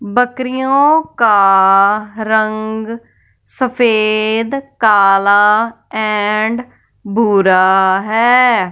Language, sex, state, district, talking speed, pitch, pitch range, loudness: Hindi, female, Punjab, Fazilka, 55 wpm, 220 Hz, 205-240 Hz, -12 LUFS